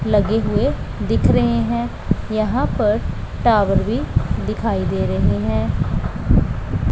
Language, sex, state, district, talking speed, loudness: Hindi, female, Punjab, Pathankot, 115 wpm, -19 LUFS